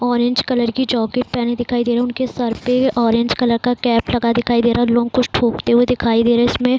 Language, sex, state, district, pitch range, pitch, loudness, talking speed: Hindi, female, Bihar, Saran, 235-250 Hz, 240 Hz, -17 LUFS, 240 wpm